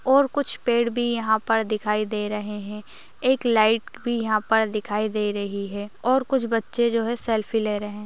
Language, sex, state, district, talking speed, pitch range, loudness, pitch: Hindi, female, Uttar Pradesh, Ghazipur, 210 wpm, 210-235 Hz, -23 LUFS, 220 Hz